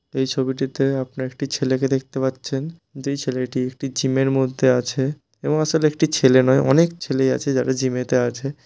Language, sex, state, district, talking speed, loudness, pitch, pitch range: Bengali, male, West Bengal, Malda, 180 wpm, -21 LUFS, 135 Hz, 130-140 Hz